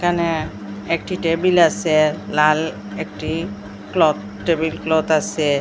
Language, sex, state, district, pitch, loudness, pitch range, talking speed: Bengali, female, Assam, Hailakandi, 155 Hz, -19 LUFS, 105-165 Hz, 105 wpm